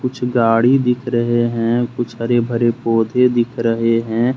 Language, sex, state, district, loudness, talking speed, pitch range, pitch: Hindi, male, Jharkhand, Deoghar, -16 LUFS, 165 wpm, 115-125 Hz, 120 Hz